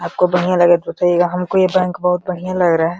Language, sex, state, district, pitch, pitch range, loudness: Hindi, male, Uttar Pradesh, Deoria, 180 Hz, 175-180 Hz, -16 LUFS